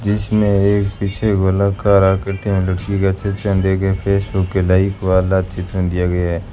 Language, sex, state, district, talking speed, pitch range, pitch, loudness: Hindi, male, Rajasthan, Bikaner, 165 wpm, 95-100 Hz, 95 Hz, -17 LUFS